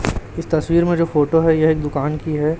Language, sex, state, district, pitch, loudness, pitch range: Hindi, male, Chhattisgarh, Raipur, 160 Hz, -18 LUFS, 150-165 Hz